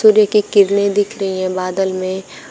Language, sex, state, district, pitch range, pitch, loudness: Hindi, female, Uttar Pradesh, Shamli, 185-205 Hz, 195 Hz, -16 LUFS